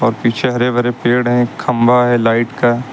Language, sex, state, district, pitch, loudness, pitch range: Hindi, male, Uttar Pradesh, Lucknow, 120 Hz, -14 LUFS, 120-125 Hz